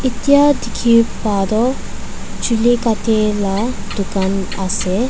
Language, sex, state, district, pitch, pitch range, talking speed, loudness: Nagamese, female, Nagaland, Dimapur, 220 Hz, 200-240 Hz, 105 wpm, -16 LUFS